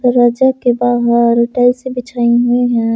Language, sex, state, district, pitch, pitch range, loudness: Hindi, male, Jharkhand, Palamu, 245 Hz, 235-245 Hz, -13 LUFS